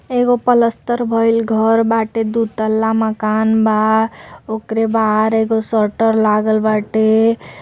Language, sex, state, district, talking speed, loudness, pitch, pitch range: Bhojpuri, female, Uttar Pradesh, Deoria, 125 wpm, -15 LUFS, 220 Hz, 220-225 Hz